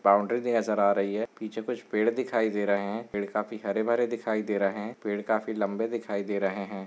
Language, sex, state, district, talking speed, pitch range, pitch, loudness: Hindi, male, Rajasthan, Nagaur, 255 wpm, 100-115 Hz, 105 Hz, -29 LUFS